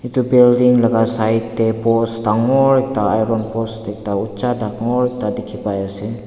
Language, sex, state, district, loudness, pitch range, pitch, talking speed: Nagamese, male, Nagaland, Dimapur, -16 LUFS, 105-125 Hz, 115 Hz, 165 wpm